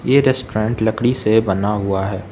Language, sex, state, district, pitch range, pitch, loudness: Hindi, male, Arunachal Pradesh, Lower Dibang Valley, 100-125 Hz, 110 Hz, -18 LUFS